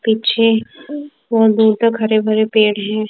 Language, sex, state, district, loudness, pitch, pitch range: Hindi, female, Punjab, Kapurthala, -14 LUFS, 220 Hz, 215-230 Hz